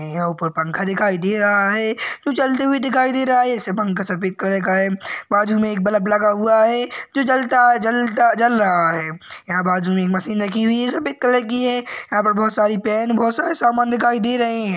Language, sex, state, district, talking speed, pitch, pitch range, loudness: Hindi, male, Uttarakhand, Tehri Garhwal, 225 wpm, 215 Hz, 195-245 Hz, -17 LUFS